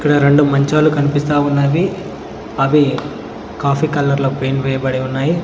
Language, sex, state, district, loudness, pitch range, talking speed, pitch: Telugu, male, Telangana, Mahabubabad, -15 LUFS, 135-150 Hz, 110 wpm, 145 Hz